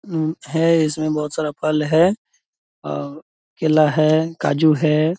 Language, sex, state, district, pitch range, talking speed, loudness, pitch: Hindi, male, Bihar, Purnia, 150-160 Hz, 115 wpm, -19 LUFS, 155 Hz